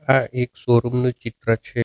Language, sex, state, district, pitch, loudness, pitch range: Gujarati, male, Gujarat, Navsari, 125 Hz, -21 LUFS, 115-125 Hz